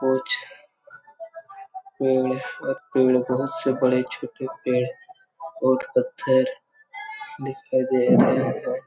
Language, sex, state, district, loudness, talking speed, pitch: Hindi, male, Chhattisgarh, Raigarh, -23 LUFS, 95 wpm, 165 Hz